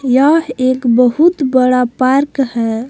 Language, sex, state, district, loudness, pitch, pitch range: Hindi, female, Jharkhand, Palamu, -13 LUFS, 255 Hz, 250-275 Hz